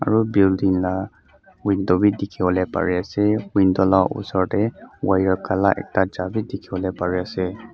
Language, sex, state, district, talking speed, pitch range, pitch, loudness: Nagamese, male, Mizoram, Aizawl, 170 wpm, 95-100 Hz, 95 Hz, -21 LUFS